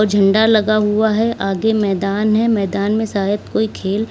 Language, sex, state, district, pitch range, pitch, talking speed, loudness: Hindi, female, Uttar Pradesh, Lalitpur, 200-220 Hz, 215 Hz, 175 wpm, -16 LUFS